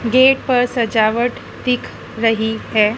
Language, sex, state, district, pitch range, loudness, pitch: Hindi, female, Madhya Pradesh, Dhar, 220-250 Hz, -17 LUFS, 235 Hz